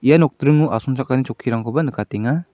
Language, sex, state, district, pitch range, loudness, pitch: Garo, male, Meghalaya, South Garo Hills, 115-150 Hz, -19 LUFS, 135 Hz